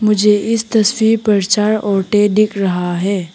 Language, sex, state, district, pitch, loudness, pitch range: Hindi, female, Arunachal Pradesh, Papum Pare, 210 Hz, -14 LUFS, 195-215 Hz